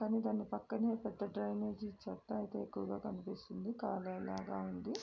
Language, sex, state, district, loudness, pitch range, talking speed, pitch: Telugu, female, Andhra Pradesh, Srikakulam, -42 LUFS, 185-215 Hz, 145 wpm, 205 Hz